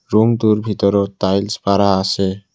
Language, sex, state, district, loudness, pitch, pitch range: Assamese, male, Assam, Kamrup Metropolitan, -16 LUFS, 100 Hz, 95-105 Hz